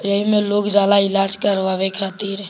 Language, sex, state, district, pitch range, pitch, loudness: Bhojpuri, male, Bihar, Muzaffarpur, 195-205 Hz, 200 Hz, -18 LUFS